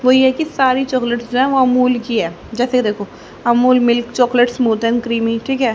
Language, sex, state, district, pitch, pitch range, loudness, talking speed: Hindi, female, Haryana, Jhajjar, 245 Hz, 235-255 Hz, -15 LUFS, 230 wpm